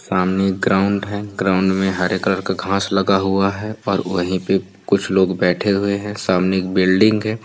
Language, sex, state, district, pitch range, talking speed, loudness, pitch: Hindi, male, Uttar Pradesh, Varanasi, 95-100 Hz, 195 wpm, -18 LUFS, 95 Hz